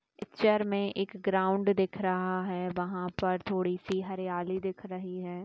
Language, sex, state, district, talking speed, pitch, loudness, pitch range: Hindi, female, Uttar Pradesh, Gorakhpur, 165 wpm, 185 Hz, -31 LUFS, 180-195 Hz